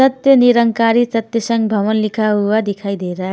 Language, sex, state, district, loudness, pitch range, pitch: Hindi, female, Himachal Pradesh, Shimla, -15 LUFS, 205-235 Hz, 220 Hz